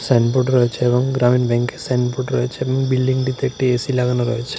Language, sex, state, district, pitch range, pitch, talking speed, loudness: Bengali, male, Tripura, West Tripura, 120-130 Hz, 125 Hz, 155 wpm, -18 LUFS